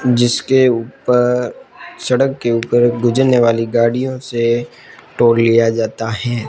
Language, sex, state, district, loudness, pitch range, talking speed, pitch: Hindi, male, Rajasthan, Barmer, -15 LUFS, 115-125 Hz, 120 wpm, 120 Hz